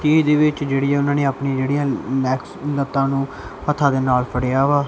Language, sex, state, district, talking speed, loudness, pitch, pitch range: Punjabi, male, Punjab, Kapurthala, 185 wpm, -19 LUFS, 140 Hz, 135-145 Hz